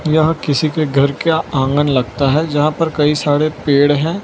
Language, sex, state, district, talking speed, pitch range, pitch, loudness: Hindi, male, Gujarat, Valsad, 200 wpm, 145-155 Hz, 150 Hz, -15 LUFS